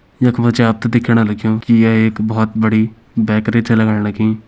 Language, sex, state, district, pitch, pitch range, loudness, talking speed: Kumaoni, male, Uttarakhand, Uttarkashi, 110 Hz, 110-115 Hz, -14 LUFS, 190 wpm